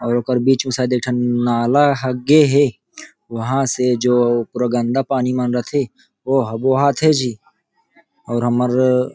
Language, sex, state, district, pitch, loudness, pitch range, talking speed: Chhattisgarhi, male, Chhattisgarh, Rajnandgaon, 125 Hz, -17 LUFS, 120-135 Hz, 175 wpm